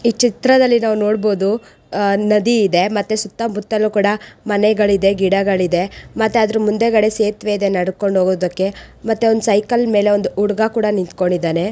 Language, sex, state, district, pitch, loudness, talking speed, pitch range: Kannada, female, Karnataka, Raichur, 210 Hz, -16 LUFS, 145 wpm, 195-220 Hz